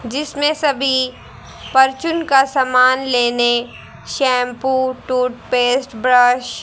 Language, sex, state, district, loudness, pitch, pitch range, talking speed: Hindi, female, Haryana, Charkhi Dadri, -16 LUFS, 255 Hz, 250-270 Hz, 90 wpm